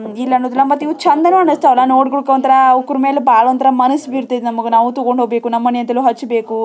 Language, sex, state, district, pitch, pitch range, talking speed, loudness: Kannada, female, Karnataka, Belgaum, 255 Hz, 245-275 Hz, 190 wpm, -13 LUFS